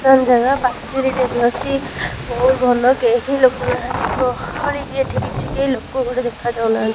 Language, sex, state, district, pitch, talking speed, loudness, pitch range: Odia, female, Odisha, Khordha, 255 Hz, 165 wpm, -18 LUFS, 240-265 Hz